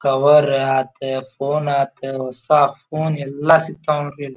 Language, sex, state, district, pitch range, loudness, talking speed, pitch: Kannada, male, Karnataka, Dharwad, 135-150 Hz, -18 LUFS, 135 wpm, 140 Hz